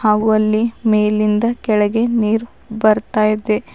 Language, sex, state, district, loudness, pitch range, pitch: Kannada, female, Karnataka, Bidar, -16 LUFS, 215-225 Hz, 215 Hz